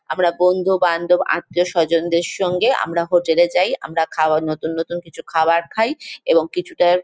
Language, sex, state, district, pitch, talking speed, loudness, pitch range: Bengali, female, West Bengal, Jalpaiguri, 175 Hz, 155 wpm, -18 LUFS, 165-180 Hz